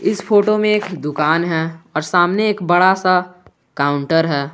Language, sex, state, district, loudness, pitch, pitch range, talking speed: Hindi, male, Jharkhand, Garhwa, -16 LUFS, 175 Hz, 160-200 Hz, 170 wpm